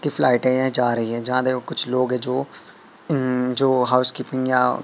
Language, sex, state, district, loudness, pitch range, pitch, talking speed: Hindi, male, Madhya Pradesh, Katni, -20 LUFS, 125-130 Hz, 125 Hz, 200 wpm